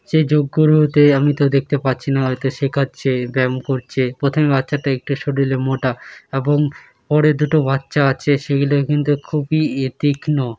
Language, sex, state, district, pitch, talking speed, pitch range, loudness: Bengali, male, West Bengal, Malda, 140 Hz, 155 wpm, 135-150 Hz, -17 LUFS